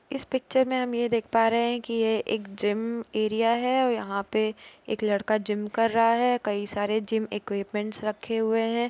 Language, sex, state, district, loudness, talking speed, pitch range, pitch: Hindi, female, Uttar Pradesh, Jalaun, -26 LUFS, 210 wpm, 210-235 Hz, 225 Hz